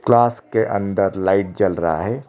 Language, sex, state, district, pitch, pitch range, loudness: Hindi, male, Odisha, Khordha, 100 Hz, 95-120 Hz, -19 LUFS